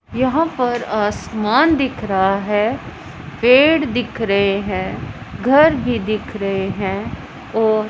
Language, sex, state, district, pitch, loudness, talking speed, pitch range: Hindi, female, Punjab, Pathankot, 215 Hz, -17 LUFS, 120 wpm, 200-250 Hz